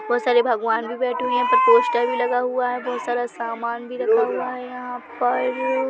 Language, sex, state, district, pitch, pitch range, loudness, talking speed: Hindi, male, Chhattisgarh, Bilaspur, 245 Hz, 235-250 Hz, -21 LUFS, 255 wpm